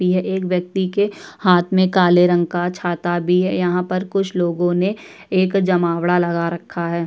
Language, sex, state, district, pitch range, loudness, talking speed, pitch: Hindi, female, Uttar Pradesh, Budaun, 175-185 Hz, -18 LUFS, 195 wpm, 180 Hz